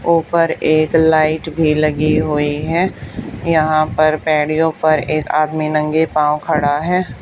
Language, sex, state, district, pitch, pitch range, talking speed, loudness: Hindi, female, Haryana, Charkhi Dadri, 155 Hz, 155-160 Hz, 140 wpm, -15 LUFS